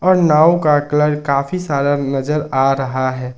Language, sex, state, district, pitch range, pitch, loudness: Hindi, male, Jharkhand, Ranchi, 135-150 Hz, 145 Hz, -15 LUFS